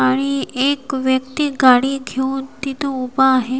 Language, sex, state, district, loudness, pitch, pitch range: Marathi, female, Maharashtra, Washim, -18 LUFS, 265 Hz, 255-275 Hz